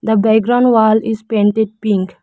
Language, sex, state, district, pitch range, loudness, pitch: English, female, Arunachal Pradesh, Lower Dibang Valley, 210-220 Hz, -14 LUFS, 220 Hz